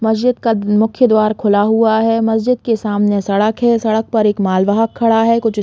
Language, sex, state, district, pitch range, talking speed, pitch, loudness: Hindi, female, Chhattisgarh, Bastar, 210-225 Hz, 235 wpm, 220 Hz, -14 LUFS